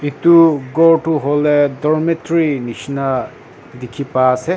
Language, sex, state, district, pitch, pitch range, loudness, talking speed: Nagamese, male, Nagaland, Dimapur, 145 Hz, 135-165 Hz, -15 LUFS, 120 wpm